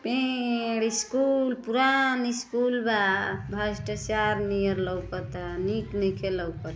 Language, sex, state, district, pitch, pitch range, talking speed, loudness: Bhojpuri, female, Uttar Pradesh, Ghazipur, 215 Hz, 195-245 Hz, 100 wpm, -27 LUFS